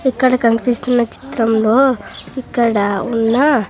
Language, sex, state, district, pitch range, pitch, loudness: Telugu, female, Andhra Pradesh, Sri Satya Sai, 225-255 Hz, 240 Hz, -15 LUFS